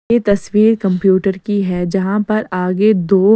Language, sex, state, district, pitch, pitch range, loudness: Hindi, female, Bihar, West Champaran, 195 Hz, 190-215 Hz, -15 LUFS